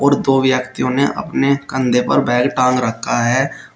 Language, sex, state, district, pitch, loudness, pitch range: Hindi, male, Uttar Pradesh, Shamli, 130 Hz, -16 LUFS, 125-135 Hz